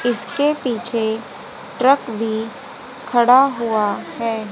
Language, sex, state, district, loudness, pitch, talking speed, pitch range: Hindi, female, Haryana, Jhajjar, -18 LUFS, 235 Hz, 95 wpm, 220-255 Hz